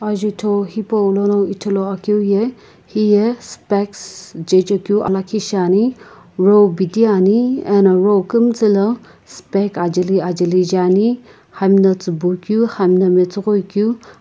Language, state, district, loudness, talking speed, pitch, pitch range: Sumi, Nagaland, Kohima, -15 LUFS, 120 wpm, 200 Hz, 185-210 Hz